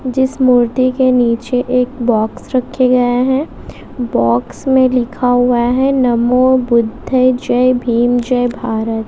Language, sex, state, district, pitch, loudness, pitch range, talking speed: Hindi, female, Bihar, West Champaran, 250 Hz, -14 LUFS, 240-255 Hz, 130 wpm